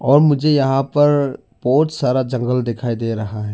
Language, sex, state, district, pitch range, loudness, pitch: Hindi, male, Arunachal Pradesh, Lower Dibang Valley, 120-145 Hz, -17 LUFS, 130 Hz